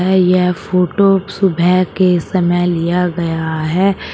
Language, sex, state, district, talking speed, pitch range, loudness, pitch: Hindi, male, Uttar Pradesh, Shamli, 130 wpm, 175-190 Hz, -14 LUFS, 180 Hz